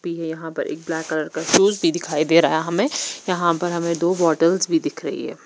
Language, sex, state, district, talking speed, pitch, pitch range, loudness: Hindi, female, Bihar, Patna, 265 wpm, 170 Hz, 160-180 Hz, -20 LUFS